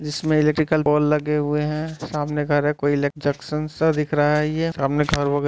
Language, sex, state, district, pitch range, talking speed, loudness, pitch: Hindi, male, Uttar Pradesh, Muzaffarnagar, 145-155 Hz, 210 wpm, -21 LUFS, 150 Hz